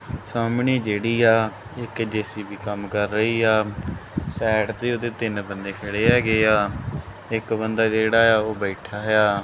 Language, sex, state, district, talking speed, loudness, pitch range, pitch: Punjabi, male, Punjab, Kapurthala, 155 wpm, -22 LUFS, 105-115 Hz, 110 Hz